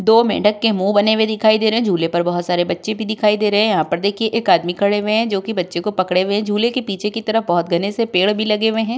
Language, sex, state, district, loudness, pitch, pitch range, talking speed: Hindi, female, Uttar Pradesh, Budaun, -17 LUFS, 210 Hz, 185-220 Hz, 320 wpm